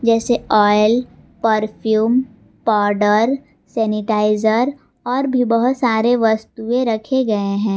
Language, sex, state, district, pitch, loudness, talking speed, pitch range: Hindi, female, Jharkhand, Garhwa, 225 Hz, -17 LUFS, 100 wpm, 215-245 Hz